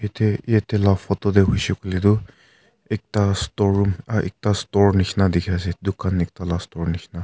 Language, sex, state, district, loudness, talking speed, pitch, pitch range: Nagamese, male, Nagaland, Kohima, -21 LUFS, 180 wpm, 100 Hz, 90-105 Hz